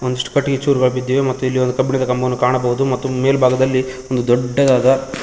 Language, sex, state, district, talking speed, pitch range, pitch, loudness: Kannada, male, Karnataka, Koppal, 150 wpm, 125-135 Hz, 130 Hz, -16 LUFS